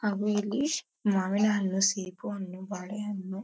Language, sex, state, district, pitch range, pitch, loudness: Kannada, female, Karnataka, Dharwad, 190-210 Hz, 205 Hz, -30 LUFS